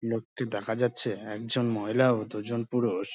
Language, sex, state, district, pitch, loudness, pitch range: Bengali, male, West Bengal, Dakshin Dinajpur, 115 Hz, -29 LUFS, 110-125 Hz